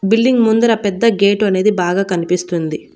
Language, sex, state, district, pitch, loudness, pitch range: Telugu, female, Andhra Pradesh, Annamaya, 200 Hz, -14 LUFS, 180-220 Hz